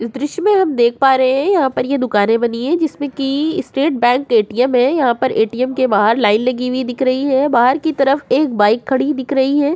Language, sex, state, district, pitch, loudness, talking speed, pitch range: Hindi, female, Uttar Pradesh, Jyotiba Phule Nagar, 265 Hz, -15 LUFS, 245 wpm, 240-285 Hz